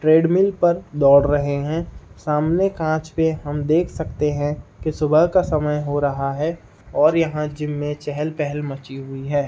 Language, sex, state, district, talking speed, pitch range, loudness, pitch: Hindi, male, Uttar Pradesh, Gorakhpur, 175 wpm, 145-160 Hz, -20 LUFS, 150 Hz